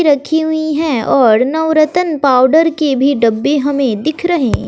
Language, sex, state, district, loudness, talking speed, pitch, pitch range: Hindi, female, Bihar, West Champaran, -13 LUFS, 155 wpm, 295 Hz, 265-315 Hz